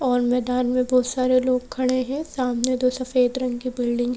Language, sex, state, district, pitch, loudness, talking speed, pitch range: Hindi, female, Madhya Pradesh, Bhopal, 255 Hz, -22 LUFS, 215 wpm, 245-255 Hz